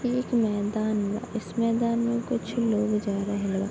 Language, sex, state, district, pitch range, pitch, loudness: Bhojpuri, female, Bihar, Gopalganj, 205-235 Hz, 220 Hz, -27 LUFS